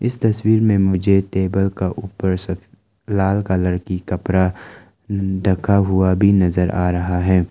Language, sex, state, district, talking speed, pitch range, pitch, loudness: Hindi, male, Arunachal Pradesh, Lower Dibang Valley, 150 wpm, 90-100 Hz, 95 Hz, -18 LUFS